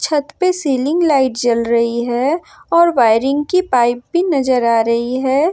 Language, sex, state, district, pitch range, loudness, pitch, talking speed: Hindi, female, Jharkhand, Ranchi, 240-330 Hz, -15 LUFS, 270 Hz, 175 wpm